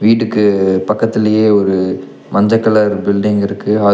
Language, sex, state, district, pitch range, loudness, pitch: Tamil, male, Tamil Nadu, Nilgiris, 100-110 Hz, -13 LUFS, 105 Hz